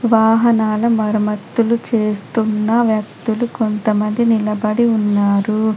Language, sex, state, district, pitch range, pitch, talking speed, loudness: Telugu, female, Telangana, Adilabad, 210-230 Hz, 220 Hz, 75 wpm, -16 LUFS